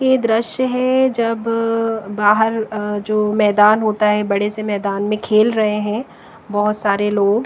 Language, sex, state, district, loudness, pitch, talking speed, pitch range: Hindi, female, Bihar, West Champaran, -17 LUFS, 215 Hz, 160 wpm, 210-230 Hz